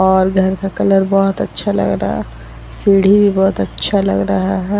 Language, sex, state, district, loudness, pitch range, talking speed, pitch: Hindi, female, Bihar, Vaishali, -14 LUFS, 190-195 Hz, 210 wpm, 195 Hz